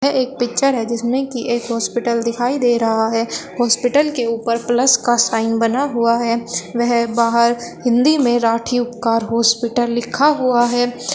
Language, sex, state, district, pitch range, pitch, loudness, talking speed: Hindi, female, Uttar Pradesh, Shamli, 230-245 Hz, 240 Hz, -17 LUFS, 155 wpm